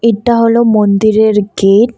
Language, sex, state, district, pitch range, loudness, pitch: Bengali, female, Assam, Kamrup Metropolitan, 210-230 Hz, -10 LUFS, 220 Hz